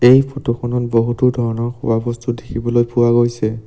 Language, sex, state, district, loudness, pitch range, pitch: Assamese, male, Assam, Sonitpur, -17 LUFS, 115-120 Hz, 120 Hz